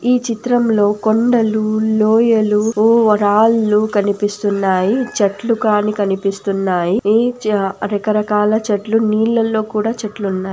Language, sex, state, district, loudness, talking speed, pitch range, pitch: Telugu, female, Andhra Pradesh, Anantapur, -15 LUFS, 110 wpm, 205-225 Hz, 215 Hz